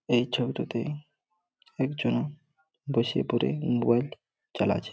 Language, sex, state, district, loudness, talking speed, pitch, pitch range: Bengali, male, West Bengal, Malda, -29 LUFS, 95 wpm, 140 Hz, 120-155 Hz